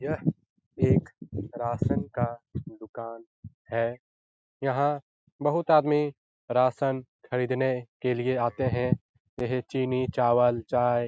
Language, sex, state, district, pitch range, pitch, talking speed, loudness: Hindi, male, Bihar, Lakhisarai, 120-135 Hz, 125 Hz, 110 wpm, -27 LUFS